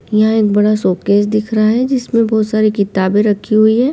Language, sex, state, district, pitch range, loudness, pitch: Hindi, female, Uttar Pradesh, Jyotiba Phule Nagar, 205-220 Hz, -13 LUFS, 215 Hz